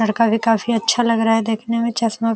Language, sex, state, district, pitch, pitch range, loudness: Hindi, female, Uttar Pradesh, Jalaun, 230 Hz, 225-230 Hz, -18 LUFS